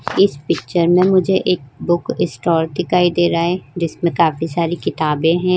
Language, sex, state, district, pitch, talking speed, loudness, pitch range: Hindi, female, Uttar Pradesh, Jyotiba Phule Nagar, 170 Hz, 170 wpm, -17 LUFS, 165-180 Hz